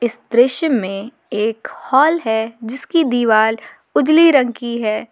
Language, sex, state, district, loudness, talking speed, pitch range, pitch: Hindi, female, Jharkhand, Garhwa, -16 LUFS, 130 wpm, 220-280 Hz, 240 Hz